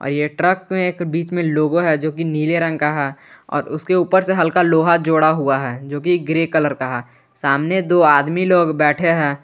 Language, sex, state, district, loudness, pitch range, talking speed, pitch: Hindi, male, Jharkhand, Garhwa, -17 LUFS, 145-170 Hz, 220 wpm, 160 Hz